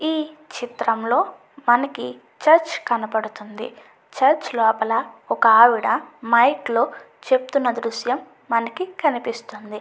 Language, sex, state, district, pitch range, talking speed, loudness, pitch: Telugu, female, Andhra Pradesh, Chittoor, 225-280 Hz, 90 wpm, -20 LUFS, 235 Hz